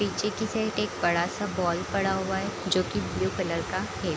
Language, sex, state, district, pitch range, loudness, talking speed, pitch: Hindi, female, Bihar, Kishanganj, 185-205 Hz, -28 LUFS, 245 wpm, 190 Hz